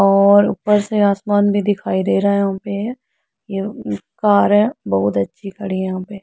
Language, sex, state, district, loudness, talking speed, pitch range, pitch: Hindi, female, Uttar Pradesh, Muzaffarnagar, -17 LUFS, 200 wpm, 190-205 Hz, 200 Hz